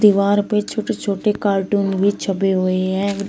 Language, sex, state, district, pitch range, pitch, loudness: Hindi, female, Uttar Pradesh, Shamli, 195-205 Hz, 200 Hz, -19 LUFS